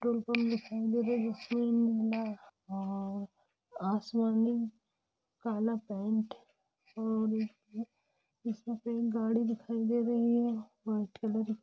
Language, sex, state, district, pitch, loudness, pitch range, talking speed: Hindi, female, Jharkhand, Jamtara, 225 Hz, -34 LUFS, 215-235 Hz, 120 wpm